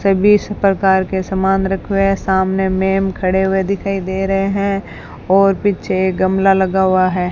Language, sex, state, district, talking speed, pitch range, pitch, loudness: Hindi, female, Rajasthan, Bikaner, 170 wpm, 190-195 Hz, 190 Hz, -15 LUFS